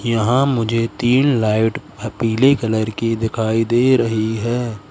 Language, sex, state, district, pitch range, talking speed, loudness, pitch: Hindi, male, Madhya Pradesh, Katni, 110-120 Hz, 145 wpm, -17 LUFS, 115 Hz